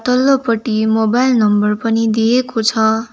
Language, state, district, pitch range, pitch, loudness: Nepali, West Bengal, Darjeeling, 220-250 Hz, 225 Hz, -14 LUFS